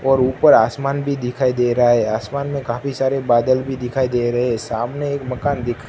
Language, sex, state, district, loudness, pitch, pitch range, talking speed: Hindi, male, Gujarat, Gandhinagar, -18 LUFS, 130 Hz, 120-135 Hz, 205 wpm